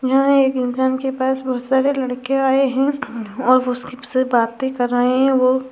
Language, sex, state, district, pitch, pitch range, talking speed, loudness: Hindi, female, Bihar, Saharsa, 260 Hz, 250-265 Hz, 200 wpm, -18 LUFS